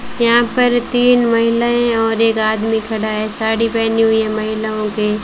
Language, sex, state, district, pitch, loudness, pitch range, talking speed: Hindi, female, Rajasthan, Bikaner, 225 Hz, -15 LUFS, 220-235 Hz, 170 wpm